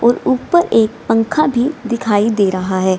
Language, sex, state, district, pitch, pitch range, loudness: Hindi, female, Bihar, Gaya, 230 Hz, 205-250 Hz, -15 LUFS